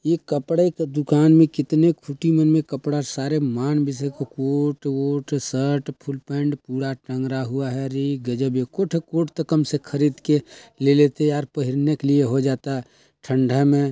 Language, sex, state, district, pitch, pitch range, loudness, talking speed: Hindi, male, Chhattisgarh, Balrampur, 145 Hz, 135-150 Hz, -21 LUFS, 190 wpm